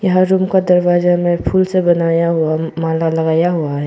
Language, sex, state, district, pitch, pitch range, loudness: Hindi, female, Arunachal Pradesh, Papum Pare, 175 Hz, 165-185 Hz, -14 LUFS